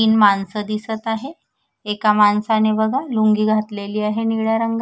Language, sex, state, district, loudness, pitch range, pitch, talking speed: Marathi, female, Maharashtra, Sindhudurg, -18 LUFS, 210-225 Hz, 215 Hz, 150 wpm